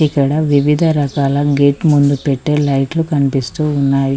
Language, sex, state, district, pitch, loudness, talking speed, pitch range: Telugu, female, Telangana, Mahabubabad, 145 Hz, -14 LUFS, 130 wpm, 140-150 Hz